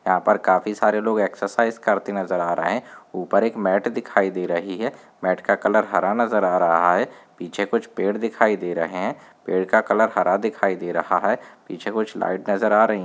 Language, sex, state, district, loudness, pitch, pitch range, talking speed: Hindi, male, Andhra Pradesh, Visakhapatnam, -21 LUFS, 95 Hz, 90-105 Hz, 220 wpm